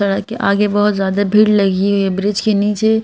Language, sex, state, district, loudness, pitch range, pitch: Hindi, female, Madhya Pradesh, Bhopal, -15 LUFS, 200-210 Hz, 205 Hz